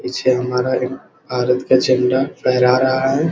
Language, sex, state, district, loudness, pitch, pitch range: Hindi, male, Bihar, Muzaffarpur, -17 LUFS, 125 Hz, 125-130 Hz